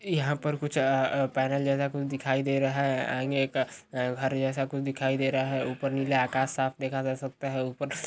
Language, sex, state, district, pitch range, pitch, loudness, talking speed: Hindi, male, Uttar Pradesh, Ghazipur, 130-140 Hz, 135 Hz, -29 LUFS, 225 wpm